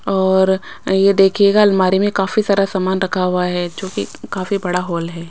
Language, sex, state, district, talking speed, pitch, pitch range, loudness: Hindi, female, Chhattisgarh, Raipur, 190 wpm, 190 Hz, 180-195 Hz, -16 LUFS